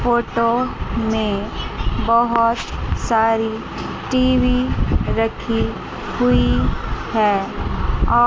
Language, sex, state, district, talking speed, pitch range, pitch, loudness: Hindi, female, Chandigarh, Chandigarh, 65 wpm, 225-240 Hz, 230 Hz, -19 LUFS